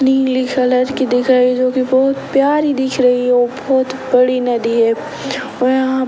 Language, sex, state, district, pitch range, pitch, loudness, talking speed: Hindi, male, Bihar, Sitamarhi, 250-265 Hz, 255 Hz, -15 LUFS, 185 wpm